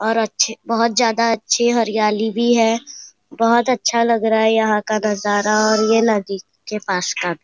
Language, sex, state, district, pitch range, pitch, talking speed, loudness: Hindi, female, Maharashtra, Nagpur, 215-230 Hz, 225 Hz, 235 wpm, -17 LUFS